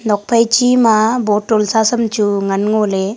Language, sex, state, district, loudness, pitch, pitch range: Wancho, female, Arunachal Pradesh, Longding, -14 LUFS, 215 Hz, 210-230 Hz